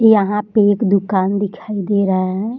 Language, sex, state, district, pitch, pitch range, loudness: Hindi, female, Bihar, Jamui, 205 Hz, 195-210 Hz, -16 LUFS